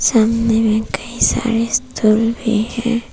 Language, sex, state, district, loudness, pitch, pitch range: Hindi, female, Arunachal Pradesh, Papum Pare, -16 LUFS, 225 Hz, 220-235 Hz